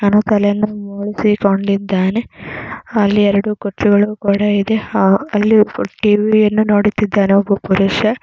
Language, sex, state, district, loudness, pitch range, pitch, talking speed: Kannada, female, Karnataka, Mysore, -14 LUFS, 200-210 Hz, 205 Hz, 125 wpm